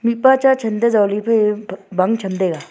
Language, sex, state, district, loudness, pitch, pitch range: Wancho, female, Arunachal Pradesh, Longding, -16 LUFS, 215 Hz, 190-235 Hz